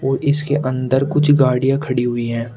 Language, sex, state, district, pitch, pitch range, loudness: Hindi, male, Uttar Pradesh, Shamli, 130 Hz, 125-145 Hz, -17 LUFS